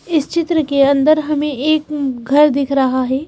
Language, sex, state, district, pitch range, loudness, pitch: Hindi, female, Madhya Pradesh, Bhopal, 275-310 Hz, -15 LUFS, 295 Hz